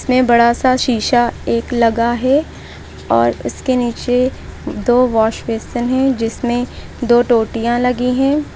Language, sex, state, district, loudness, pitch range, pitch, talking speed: Hindi, female, Uttar Pradesh, Lucknow, -15 LUFS, 235-255 Hz, 240 Hz, 135 wpm